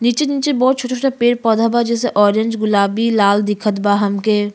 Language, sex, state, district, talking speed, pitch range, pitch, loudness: Bhojpuri, female, Uttar Pradesh, Gorakhpur, 185 wpm, 205-245 Hz, 225 Hz, -15 LUFS